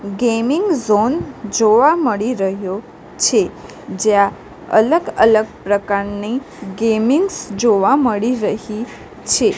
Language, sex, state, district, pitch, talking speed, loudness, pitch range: Gujarati, female, Gujarat, Gandhinagar, 220 Hz, 95 wpm, -16 LUFS, 205-250 Hz